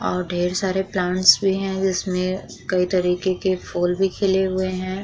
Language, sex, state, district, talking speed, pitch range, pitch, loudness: Hindi, female, Uttar Pradesh, Muzaffarnagar, 180 wpm, 180-190 Hz, 185 Hz, -21 LUFS